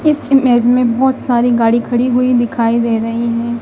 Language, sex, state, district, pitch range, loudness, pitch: Hindi, female, Madhya Pradesh, Dhar, 235-250 Hz, -13 LUFS, 240 Hz